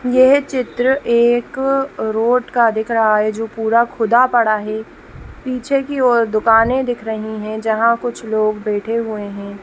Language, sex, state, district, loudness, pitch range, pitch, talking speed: Hindi, female, Bihar, Saharsa, -16 LUFS, 220-250 Hz, 230 Hz, 160 wpm